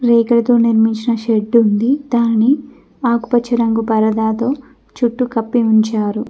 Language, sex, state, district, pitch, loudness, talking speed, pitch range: Telugu, female, Telangana, Mahabubabad, 235 Hz, -15 LUFS, 105 wpm, 220-240 Hz